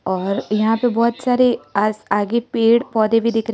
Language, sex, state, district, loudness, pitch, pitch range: Hindi, male, Arunachal Pradesh, Lower Dibang Valley, -18 LUFS, 225 Hz, 215-235 Hz